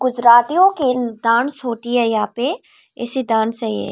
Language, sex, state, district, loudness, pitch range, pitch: Hindi, female, Tripura, Unakoti, -17 LUFS, 230-260 Hz, 240 Hz